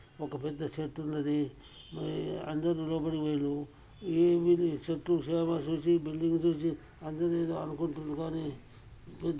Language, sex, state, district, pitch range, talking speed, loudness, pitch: Telugu, male, Telangana, Karimnagar, 150-165 Hz, 120 wpm, -32 LUFS, 160 Hz